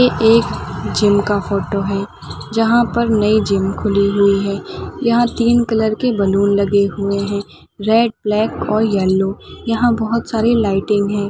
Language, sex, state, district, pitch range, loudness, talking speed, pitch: Hindi, female, Chhattisgarh, Sukma, 200-230 Hz, -16 LUFS, 155 wpm, 210 Hz